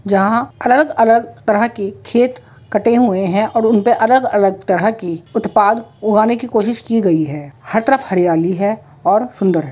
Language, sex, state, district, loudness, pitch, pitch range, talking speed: Hindi, female, Uttar Pradesh, Jalaun, -15 LUFS, 215 Hz, 190-230 Hz, 175 wpm